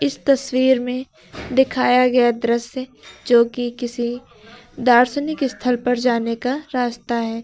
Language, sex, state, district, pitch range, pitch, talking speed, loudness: Hindi, female, Uttar Pradesh, Lucknow, 235-255 Hz, 245 Hz, 130 wpm, -19 LUFS